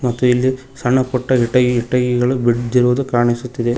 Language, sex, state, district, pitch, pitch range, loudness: Kannada, male, Karnataka, Koppal, 125 Hz, 120-130 Hz, -16 LUFS